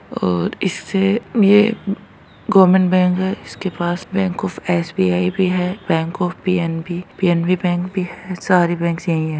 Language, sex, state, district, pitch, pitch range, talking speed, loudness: Hindi, female, Rajasthan, Churu, 180 Hz, 175-190 Hz, 190 wpm, -18 LUFS